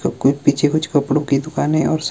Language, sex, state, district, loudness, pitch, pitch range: Hindi, male, Himachal Pradesh, Shimla, -18 LUFS, 150 Hz, 140-155 Hz